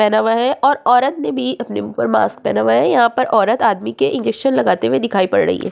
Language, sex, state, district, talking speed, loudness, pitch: Hindi, female, Uttar Pradesh, Hamirpur, 270 wpm, -16 LUFS, 220 Hz